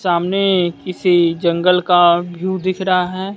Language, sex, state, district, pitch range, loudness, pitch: Hindi, male, Bihar, West Champaran, 175-185 Hz, -16 LUFS, 180 Hz